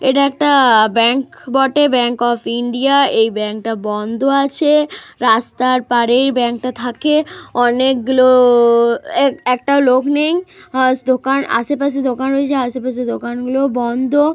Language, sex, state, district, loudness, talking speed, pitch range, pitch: Bengali, female, Jharkhand, Jamtara, -15 LUFS, 115 wpm, 240-275 Hz, 255 Hz